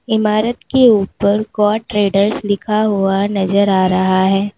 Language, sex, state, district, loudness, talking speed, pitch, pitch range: Hindi, female, Uttar Pradesh, Lalitpur, -15 LUFS, 145 wpm, 205 Hz, 195-215 Hz